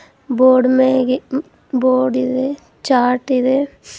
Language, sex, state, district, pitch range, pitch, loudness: Kannada, female, Karnataka, Bidar, 255-265 Hz, 255 Hz, -16 LUFS